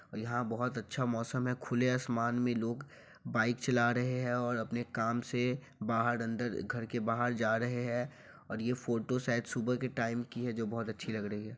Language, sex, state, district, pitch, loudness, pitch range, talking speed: Hindi, male, Bihar, Sitamarhi, 120 Hz, -34 LUFS, 115-125 Hz, 205 wpm